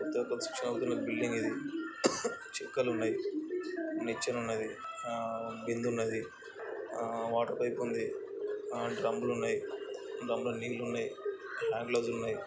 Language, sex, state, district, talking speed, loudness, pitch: Telugu, male, Andhra Pradesh, Chittoor, 85 wpm, -36 LUFS, 335 Hz